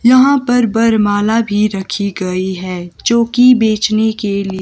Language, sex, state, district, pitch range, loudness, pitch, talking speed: Hindi, female, Himachal Pradesh, Shimla, 195-230 Hz, -13 LUFS, 215 Hz, 145 wpm